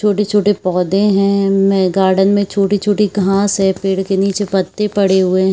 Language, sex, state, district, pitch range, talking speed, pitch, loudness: Hindi, female, Chhattisgarh, Bilaspur, 190-205 Hz, 185 wpm, 195 Hz, -14 LUFS